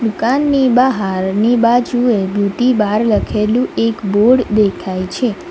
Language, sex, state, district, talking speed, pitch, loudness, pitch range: Gujarati, female, Gujarat, Valsad, 110 wpm, 225 Hz, -14 LUFS, 205-245 Hz